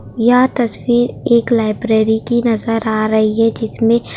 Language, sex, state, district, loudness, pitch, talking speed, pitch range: Hindi, female, West Bengal, Kolkata, -14 LUFS, 230 Hz, 145 wpm, 220-240 Hz